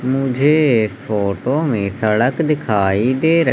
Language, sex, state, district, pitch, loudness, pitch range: Hindi, male, Madhya Pradesh, Umaria, 130 Hz, -17 LUFS, 105-145 Hz